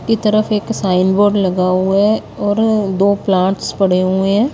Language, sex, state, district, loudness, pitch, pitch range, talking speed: Hindi, female, Haryana, Rohtak, -14 LUFS, 200 Hz, 190-210 Hz, 185 wpm